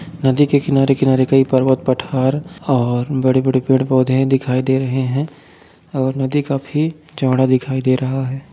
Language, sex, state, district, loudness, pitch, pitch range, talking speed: Hindi, male, Uttar Pradesh, Jyotiba Phule Nagar, -17 LUFS, 130 Hz, 130-140 Hz, 160 wpm